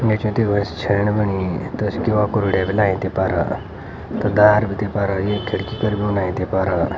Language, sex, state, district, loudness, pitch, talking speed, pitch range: Garhwali, male, Uttarakhand, Uttarkashi, -19 LUFS, 105 Hz, 165 wpm, 95-105 Hz